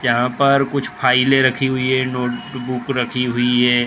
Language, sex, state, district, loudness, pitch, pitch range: Hindi, male, Maharashtra, Gondia, -17 LUFS, 125 Hz, 125-135 Hz